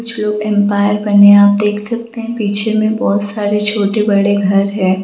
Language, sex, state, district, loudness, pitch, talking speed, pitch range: Hindi, female, Jharkhand, Jamtara, -13 LUFS, 205 Hz, 205 wpm, 200-215 Hz